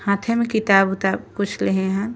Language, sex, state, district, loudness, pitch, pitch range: Bhojpuri, female, Uttar Pradesh, Ghazipur, -20 LUFS, 200 Hz, 195-220 Hz